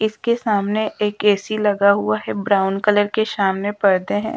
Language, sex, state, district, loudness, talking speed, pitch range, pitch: Hindi, female, Bihar, Patna, -18 LUFS, 180 wpm, 200-215 Hz, 205 Hz